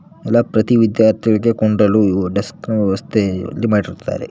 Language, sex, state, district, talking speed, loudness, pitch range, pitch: Kannada, male, Karnataka, Koppal, 110 wpm, -16 LUFS, 105-115 Hz, 110 Hz